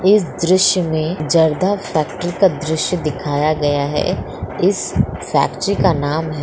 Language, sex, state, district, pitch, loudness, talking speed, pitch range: Hindi, female, Bihar, Muzaffarpur, 160 Hz, -17 LUFS, 150 wpm, 150-185 Hz